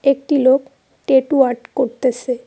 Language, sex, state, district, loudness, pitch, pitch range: Bengali, female, West Bengal, Cooch Behar, -16 LUFS, 260 Hz, 250-275 Hz